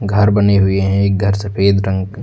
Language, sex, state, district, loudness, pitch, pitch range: Hindi, male, Uttar Pradesh, Lucknow, -14 LUFS, 100 Hz, 95-100 Hz